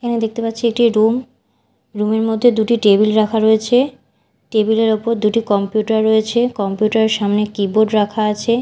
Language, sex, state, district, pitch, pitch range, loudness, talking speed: Bengali, female, Odisha, Malkangiri, 220 Hz, 215-230 Hz, -16 LUFS, 165 wpm